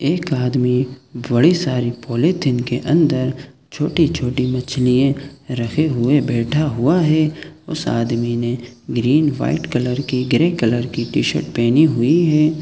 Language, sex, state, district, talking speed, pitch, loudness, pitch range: Hindi, male, Chhattisgarh, Sukma, 140 wpm, 130 Hz, -18 LUFS, 120-155 Hz